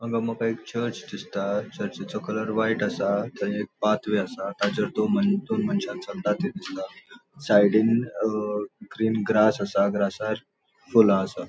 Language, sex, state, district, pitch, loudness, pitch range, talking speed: Konkani, male, Goa, North and South Goa, 110 Hz, -25 LUFS, 105-125 Hz, 145 wpm